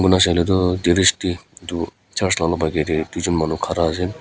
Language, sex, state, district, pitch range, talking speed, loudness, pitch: Nagamese, female, Nagaland, Kohima, 80-90 Hz, 185 wpm, -19 LUFS, 85 Hz